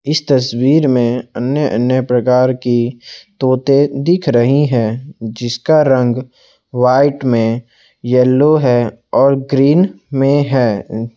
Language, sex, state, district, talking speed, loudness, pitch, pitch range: Hindi, male, Assam, Kamrup Metropolitan, 120 wpm, -14 LUFS, 130 Hz, 120-140 Hz